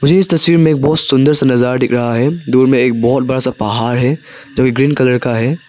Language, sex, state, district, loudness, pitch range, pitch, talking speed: Hindi, male, Arunachal Pradesh, Papum Pare, -12 LUFS, 125-150 Hz, 130 Hz, 275 wpm